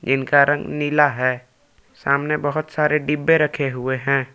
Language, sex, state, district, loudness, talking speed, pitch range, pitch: Hindi, male, Jharkhand, Palamu, -19 LUFS, 150 wpm, 135-150 Hz, 145 Hz